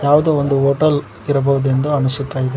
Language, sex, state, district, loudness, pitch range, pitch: Kannada, male, Karnataka, Koppal, -16 LUFS, 135-145 Hz, 140 Hz